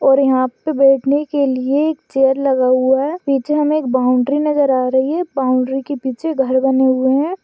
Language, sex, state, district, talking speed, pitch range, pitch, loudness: Hindi, female, Maharashtra, Pune, 210 wpm, 260-290 Hz, 270 Hz, -16 LUFS